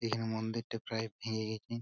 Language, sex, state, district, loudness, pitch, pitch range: Bengali, male, West Bengal, Purulia, -38 LUFS, 115 Hz, 110-115 Hz